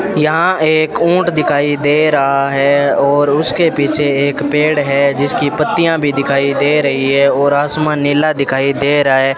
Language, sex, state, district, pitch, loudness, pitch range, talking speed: Hindi, male, Rajasthan, Bikaner, 145 Hz, -13 LUFS, 140-150 Hz, 175 wpm